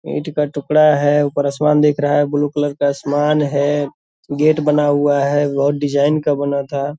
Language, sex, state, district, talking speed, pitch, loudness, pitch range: Hindi, male, Bihar, Purnia, 195 wpm, 145 Hz, -16 LUFS, 145-150 Hz